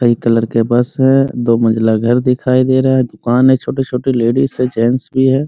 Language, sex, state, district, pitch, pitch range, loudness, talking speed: Hindi, male, Bihar, Muzaffarpur, 125 Hz, 115-130 Hz, -13 LUFS, 230 wpm